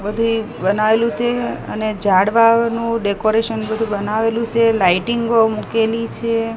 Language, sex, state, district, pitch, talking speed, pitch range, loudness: Gujarati, female, Gujarat, Gandhinagar, 225 Hz, 110 wpm, 215-230 Hz, -17 LUFS